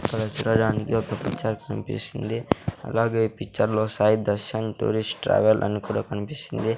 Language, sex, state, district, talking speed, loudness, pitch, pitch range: Telugu, male, Andhra Pradesh, Sri Satya Sai, 135 wpm, -25 LUFS, 110 Hz, 105-115 Hz